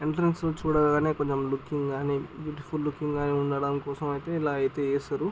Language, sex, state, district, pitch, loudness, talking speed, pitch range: Telugu, male, Andhra Pradesh, Chittoor, 145 Hz, -28 LUFS, 135 wpm, 140-155 Hz